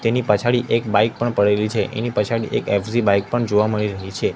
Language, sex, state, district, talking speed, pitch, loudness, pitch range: Gujarati, male, Gujarat, Gandhinagar, 235 wpm, 105 Hz, -19 LUFS, 100-120 Hz